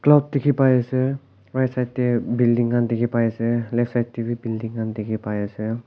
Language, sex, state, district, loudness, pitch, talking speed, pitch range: Nagamese, male, Nagaland, Kohima, -22 LUFS, 120 Hz, 215 wpm, 115-125 Hz